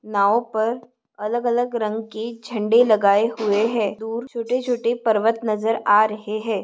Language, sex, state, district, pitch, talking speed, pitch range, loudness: Hindi, female, Maharashtra, Sindhudurg, 225 Hz, 165 wpm, 215-235 Hz, -21 LUFS